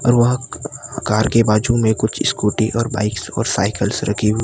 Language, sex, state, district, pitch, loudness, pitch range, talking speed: Hindi, male, Maharashtra, Gondia, 110 Hz, -18 LUFS, 105-115 Hz, 190 wpm